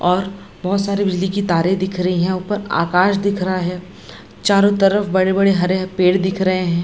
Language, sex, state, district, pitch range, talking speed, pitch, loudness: Hindi, female, Bihar, Jamui, 180-195 Hz, 195 wpm, 185 Hz, -17 LUFS